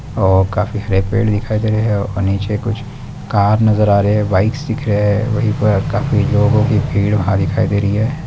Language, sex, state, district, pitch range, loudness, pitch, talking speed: Hindi, male, Bihar, Darbhanga, 100-110 Hz, -15 LUFS, 105 Hz, 225 wpm